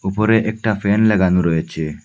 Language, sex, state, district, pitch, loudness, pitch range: Bengali, male, Assam, Hailakandi, 100 Hz, -17 LUFS, 90-110 Hz